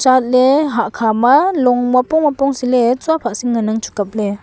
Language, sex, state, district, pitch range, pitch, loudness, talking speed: Wancho, female, Arunachal Pradesh, Longding, 230-275 Hz, 250 Hz, -15 LUFS, 175 wpm